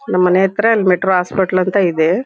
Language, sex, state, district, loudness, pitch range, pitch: Kannada, female, Karnataka, Shimoga, -14 LUFS, 180-195 Hz, 185 Hz